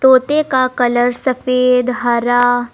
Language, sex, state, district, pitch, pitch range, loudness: Hindi, male, Uttar Pradesh, Lucknow, 250 Hz, 245-260 Hz, -14 LUFS